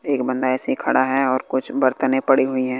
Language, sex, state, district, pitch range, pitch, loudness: Hindi, male, Bihar, West Champaran, 130-135 Hz, 130 Hz, -20 LUFS